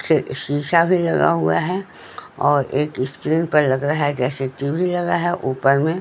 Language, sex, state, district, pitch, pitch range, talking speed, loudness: Hindi, female, Bihar, Patna, 145 Hz, 135-170 Hz, 190 wpm, -19 LUFS